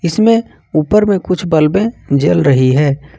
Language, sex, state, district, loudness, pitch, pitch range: Hindi, male, Jharkhand, Ranchi, -13 LUFS, 170 Hz, 145-205 Hz